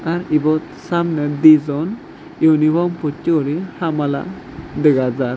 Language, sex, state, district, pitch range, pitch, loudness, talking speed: Chakma, male, Tripura, Dhalai, 145-170 Hz, 155 Hz, -17 LUFS, 110 wpm